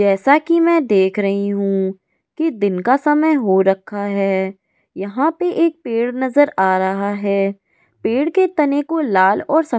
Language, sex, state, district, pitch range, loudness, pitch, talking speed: Hindi, female, Goa, North and South Goa, 195-300 Hz, -17 LUFS, 210 Hz, 180 wpm